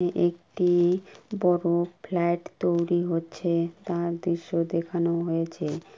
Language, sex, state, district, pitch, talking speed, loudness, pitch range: Bengali, female, West Bengal, Kolkata, 170 Hz, 90 wpm, -26 LUFS, 170-175 Hz